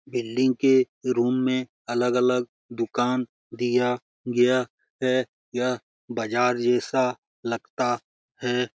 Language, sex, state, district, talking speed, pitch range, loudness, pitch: Hindi, male, Bihar, Lakhisarai, 95 wpm, 120-125 Hz, -25 LUFS, 125 Hz